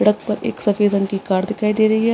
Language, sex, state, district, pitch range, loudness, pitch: Hindi, female, Maharashtra, Aurangabad, 200-215 Hz, -19 LUFS, 210 Hz